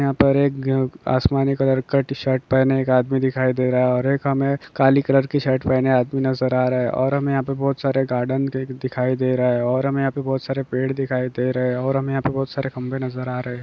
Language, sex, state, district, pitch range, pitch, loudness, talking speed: Hindi, male, Bihar, Kishanganj, 130-135 Hz, 130 Hz, -20 LUFS, 255 wpm